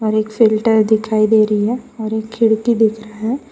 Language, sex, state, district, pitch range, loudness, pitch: Hindi, female, Gujarat, Valsad, 215-225 Hz, -16 LUFS, 220 Hz